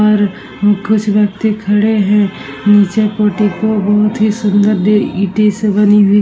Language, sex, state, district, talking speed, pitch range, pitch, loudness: Hindi, female, Bihar, Vaishali, 155 wpm, 205-210 Hz, 210 Hz, -12 LUFS